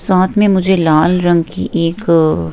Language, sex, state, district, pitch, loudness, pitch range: Hindi, female, Himachal Pradesh, Shimla, 175 Hz, -13 LUFS, 165-185 Hz